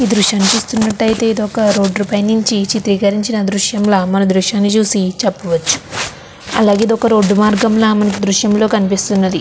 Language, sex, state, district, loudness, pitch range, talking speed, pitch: Telugu, female, Andhra Pradesh, Chittoor, -13 LUFS, 200-220 Hz, 155 wpm, 210 Hz